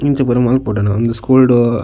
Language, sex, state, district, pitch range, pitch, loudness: Tulu, male, Karnataka, Dakshina Kannada, 115-130 Hz, 120 Hz, -13 LUFS